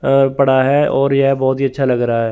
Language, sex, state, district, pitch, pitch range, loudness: Hindi, male, Chandigarh, Chandigarh, 135 Hz, 130-135 Hz, -14 LUFS